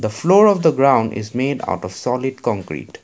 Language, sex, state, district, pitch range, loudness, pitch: English, male, Assam, Kamrup Metropolitan, 110-150 Hz, -17 LUFS, 130 Hz